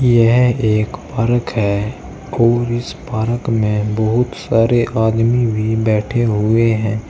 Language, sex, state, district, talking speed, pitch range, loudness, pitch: Hindi, male, Uttar Pradesh, Saharanpur, 125 wpm, 110-120 Hz, -16 LUFS, 115 Hz